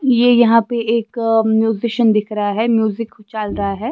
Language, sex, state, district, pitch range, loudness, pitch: Hindi, female, Himachal Pradesh, Shimla, 215-235 Hz, -16 LUFS, 225 Hz